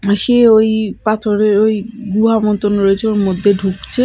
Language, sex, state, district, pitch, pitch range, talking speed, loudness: Bengali, female, Odisha, Malkangiri, 210 Hz, 200-220 Hz, 150 wpm, -14 LUFS